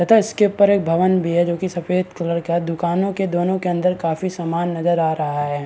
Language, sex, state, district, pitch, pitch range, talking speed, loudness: Hindi, male, Uttar Pradesh, Varanasi, 175 Hz, 170-185 Hz, 235 wpm, -19 LUFS